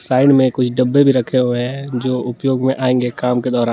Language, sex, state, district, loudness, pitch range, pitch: Hindi, male, Jharkhand, Garhwa, -16 LUFS, 125-130 Hz, 125 Hz